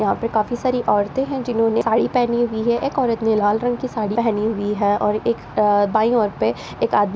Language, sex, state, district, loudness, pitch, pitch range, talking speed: Hindi, female, Uttar Pradesh, Ghazipur, -19 LUFS, 225 Hz, 210-240 Hz, 250 wpm